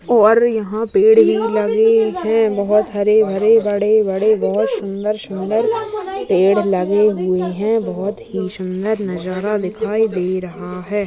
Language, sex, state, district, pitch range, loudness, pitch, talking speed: Hindi, female, Bihar, Bhagalpur, 195-220 Hz, -16 LUFS, 210 Hz, 125 wpm